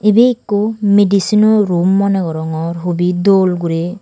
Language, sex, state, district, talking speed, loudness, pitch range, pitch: Chakma, female, Tripura, Dhalai, 135 wpm, -14 LUFS, 175-210 Hz, 195 Hz